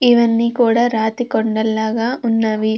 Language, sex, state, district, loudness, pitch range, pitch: Telugu, female, Andhra Pradesh, Krishna, -16 LUFS, 220-240 Hz, 225 Hz